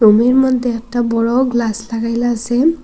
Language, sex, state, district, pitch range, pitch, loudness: Bengali, female, Assam, Hailakandi, 230-250 Hz, 240 Hz, -15 LUFS